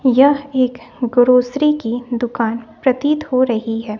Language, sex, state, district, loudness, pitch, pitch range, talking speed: Hindi, female, Bihar, West Champaran, -17 LUFS, 250 Hz, 235-270 Hz, 135 wpm